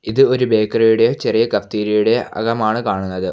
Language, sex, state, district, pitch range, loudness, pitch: Malayalam, male, Kerala, Kollam, 105-115 Hz, -16 LUFS, 110 Hz